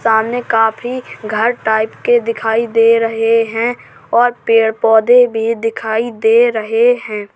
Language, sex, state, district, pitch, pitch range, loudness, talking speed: Hindi, female, Uttar Pradesh, Jalaun, 230 Hz, 225-240 Hz, -14 LUFS, 140 wpm